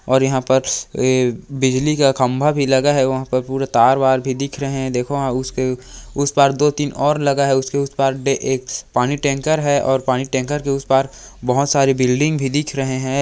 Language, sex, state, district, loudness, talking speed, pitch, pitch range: Hindi, male, Chhattisgarh, Korba, -18 LUFS, 210 wpm, 135 Hz, 130-140 Hz